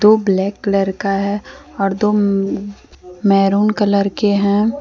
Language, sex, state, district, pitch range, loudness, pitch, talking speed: Hindi, female, Jharkhand, Deoghar, 195-210 Hz, -16 LUFS, 200 Hz, 135 wpm